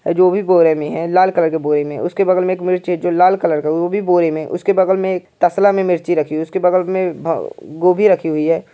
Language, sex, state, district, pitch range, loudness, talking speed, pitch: Hindi, male, Uttar Pradesh, Jyotiba Phule Nagar, 160-185 Hz, -15 LUFS, 300 wpm, 175 Hz